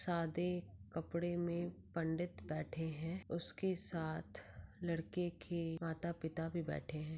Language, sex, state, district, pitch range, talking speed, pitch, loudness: Hindi, female, Uttar Pradesh, Jyotiba Phule Nagar, 160-175 Hz, 115 wpm, 170 Hz, -43 LUFS